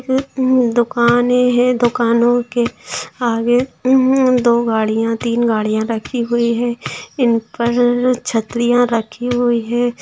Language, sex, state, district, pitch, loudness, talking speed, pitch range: Hindi, female, Bihar, Muzaffarpur, 240 Hz, -16 LUFS, 115 wpm, 235-245 Hz